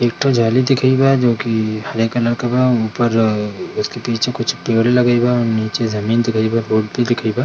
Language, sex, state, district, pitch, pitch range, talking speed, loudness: Hindi, male, Bihar, Darbhanga, 115 Hz, 110-120 Hz, 185 wpm, -16 LUFS